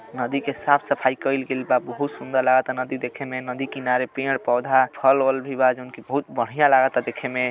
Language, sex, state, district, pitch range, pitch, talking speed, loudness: Bhojpuri, male, Uttar Pradesh, Gorakhpur, 125-135 Hz, 130 Hz, 225 wpm, -22 LUFS